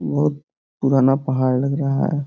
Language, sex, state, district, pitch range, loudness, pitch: Hindi, male, Uttar Pradesh, Gorakhpur, 105-135 Hz, -19 LUFS, 130 Hz